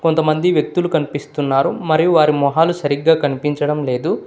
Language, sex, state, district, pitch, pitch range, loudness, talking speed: Telugu, male, Telangana, Hyderabad, 150 Hz, 145-165 Hz, -16 LUFS, 125 wpm